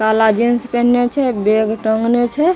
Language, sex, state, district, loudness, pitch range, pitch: Maithili, female, Bihar, Begusarai, -15 LUFS, 220-245 Hz, 240 Hz